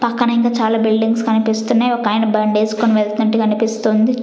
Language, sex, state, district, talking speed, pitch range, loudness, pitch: Telugu, female, Andhra Pradesh, Sri Satya Sai, 130 wpm, 220-235 Hz, -16 LUFS, 225 Hz